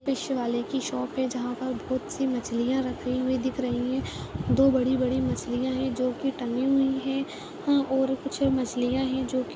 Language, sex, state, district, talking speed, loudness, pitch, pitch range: Kumaoni, female, Uttarakhand, Uttarkashi, 190 wpm, -27 LUFS, 260 Hz, 250-270 Hz